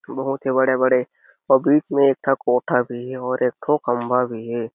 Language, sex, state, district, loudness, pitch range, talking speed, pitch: Chhattisgarhi, male, Chhattisgarh, Sarguja, -20 LUFS, 125-135 Hz, 200 wpm, 130 Hz